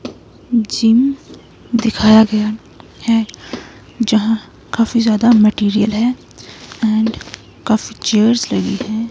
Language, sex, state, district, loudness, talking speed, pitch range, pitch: Hindi, female, Himachal Pradesh, Shimla, -15 LUFS, 90 wpm, 215-235 Hz, 225 Hz